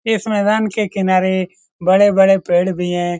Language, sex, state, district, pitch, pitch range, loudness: Hindi, male, Bihar, Lakhisarai, 190 Hz, 180-205 Hz, -15 LUFS